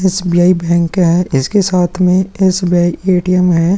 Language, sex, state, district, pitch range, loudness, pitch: Hindi, male, Bihar, Vaishali, 175-185 Hz, -12 LUFS, 180 Hz